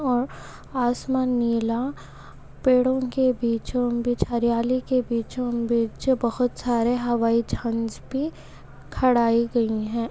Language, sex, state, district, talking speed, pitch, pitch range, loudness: Hindi, female, Goa, North and South Goa, 115 wpm, 240 Hz, 235-255 Hz, -24 LUFS